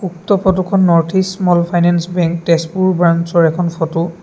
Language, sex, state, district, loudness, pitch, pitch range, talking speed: Assamese, male, Assam, Sonitpur, -14 LUFS, 175 Hz, 170-185 Hz, 155 wpm